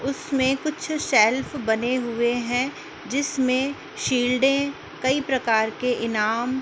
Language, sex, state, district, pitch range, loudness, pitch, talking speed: Hindi, female, Uttar Pradesh, Muzaffarnagar, 240-280 Hz, -23 LUFS, 260 Hz, 120 wpm